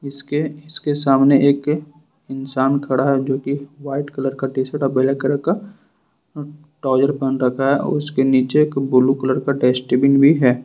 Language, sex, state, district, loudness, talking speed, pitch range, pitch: Hindi, male, Jharkhand, Ranchi, -18 LUFS, 180 wpm, 135-145 Hz, 140 Hz